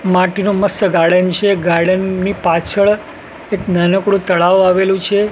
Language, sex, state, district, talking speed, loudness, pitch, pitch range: Gujarati, male, Gujarat, Gandhinagar, 135 wpm, -14 LUFS, 190 Hz, 180-200 Hz